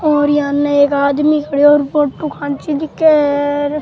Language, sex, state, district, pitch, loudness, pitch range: Rajasthani, male, Rajasthan, Churu, 290 Hz, -14 LUFS, 285-300 Hz